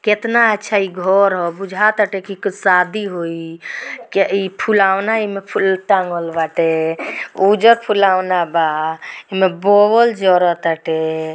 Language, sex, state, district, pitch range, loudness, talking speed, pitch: Bhojpuri, female, Bihar, Gopalganj, 170-205 Hz, -16 LUFS, 120 wpm, 190 Hz